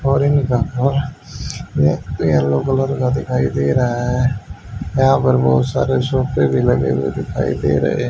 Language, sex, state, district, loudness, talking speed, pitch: Hindi, male, Haryana, Rohtak, -17 LUFS, 140 wpm, 120 Hz